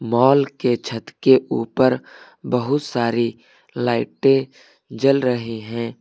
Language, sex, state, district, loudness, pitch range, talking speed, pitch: Hindi, male, Uttar Pradesh, Lucknow, -20 LUFS, 115-135 Hz, 110 wpm, 125 Hz